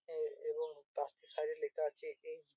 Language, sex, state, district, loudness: Bengali, male, West Bengal, North 24 Parganas, -42 LUFS